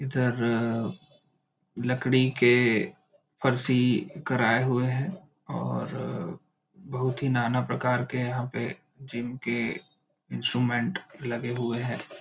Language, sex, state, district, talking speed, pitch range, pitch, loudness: Chhattisgarhi, male, Chhattisgarh, Bilaspur, 110 wpm, 120-135 Hz, 125 Hz, -28 LUFS